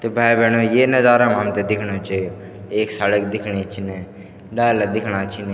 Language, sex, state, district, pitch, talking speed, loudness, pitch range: Garhwali, male, Uttarakhand, Tehri Garhwal, 105 Hz, 175 wpm, -18 LUFS, 100-115 Hz